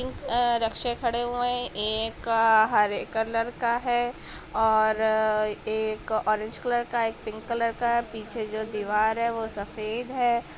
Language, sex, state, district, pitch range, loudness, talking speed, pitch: Hindi, female, Bihar, Saran, 220-240 Hz, -26 LUFS, 165 wpm, 225 Hz